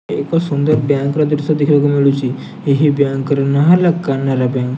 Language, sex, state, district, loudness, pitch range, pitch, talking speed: Odia, male, Odisha, Nuapada, -15 LUFS, 135-150 Hz, 145 Hz, 190 wpm